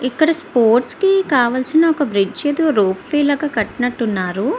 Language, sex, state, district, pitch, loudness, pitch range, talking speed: Telugu, female, Andhra Pradesh, Visakhapatnam, 255 Hz, -16 LUFS, 225-310 Hz, 145 wpm